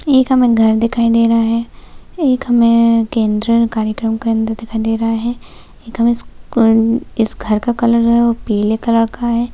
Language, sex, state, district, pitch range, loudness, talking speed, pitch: Hindi, female, Maharashtra, Sindhudurg, 225-235 Hz, -14 LUFS, 165 wpm, 230 Hz